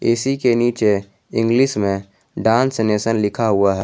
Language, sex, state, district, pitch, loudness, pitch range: Hindi, male, Jharkhand, Garhwa, 110 Hz, -18 LUFS, 100-120 Hz